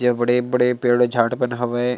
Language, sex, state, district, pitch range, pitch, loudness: Chhattisgarhi, male, Chhattisgarh, Sarguja, 120-125 Hz, 125 Hz, -19 LUFS